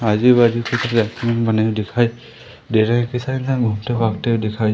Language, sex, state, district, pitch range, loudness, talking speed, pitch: Hindi, male, Madhya Pradesh, Umaria, 110-120 Hz, -18 LUFS, 165 wpm, 115 Hz